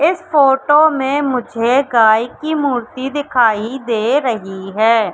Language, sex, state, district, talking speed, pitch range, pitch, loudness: Hindi, female, Madhya Pradesh, Katni, 130 wpm, 225-285 Hz, 255 Hz, -15 LUFS